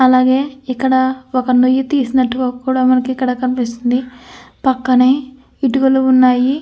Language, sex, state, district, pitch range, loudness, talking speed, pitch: Telugu, female, Andhra Pradesh, Anantapur, 255-265 Hz, -14 LUFS, 100 wpm, 255 Hz